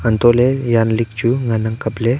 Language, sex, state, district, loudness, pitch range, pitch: Wancho, male, Arunachal Pradesh, Longding, -16 LUFS, 110-120 Hz, 115 Hz